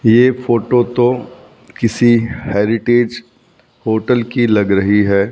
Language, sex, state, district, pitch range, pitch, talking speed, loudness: Hindi, male, Rajasthan, Bikaner, 110-120 Hz, 120 Hz, 115 wpm, -14 LUFS